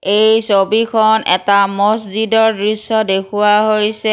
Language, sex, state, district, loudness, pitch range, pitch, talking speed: Assamese, female, Assam, Kamrup Metropolitan, -13 LUFS, 200-220 Hz, 215 Hz, 100 wpm